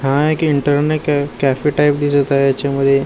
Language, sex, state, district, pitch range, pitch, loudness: Marathi, male, Maharashtra, Gondia, 140-150 Hz, 145 Hz, -15 LUFS